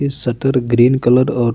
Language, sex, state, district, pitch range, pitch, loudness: Hindi, male, Uttar Pradesh, Budaun, 120-135 Hz, 125 Hz, -14 LUFS